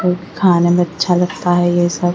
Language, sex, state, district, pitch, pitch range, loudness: Hindi, female, Odisha, Sambalpur, 175 Hz, 175-180 Hz, -15 LUFS